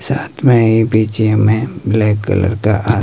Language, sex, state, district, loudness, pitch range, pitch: Hindi, male, Himachal Pradesh, Shimla, -14 LUFS, 105-110 Hz, 110 Hz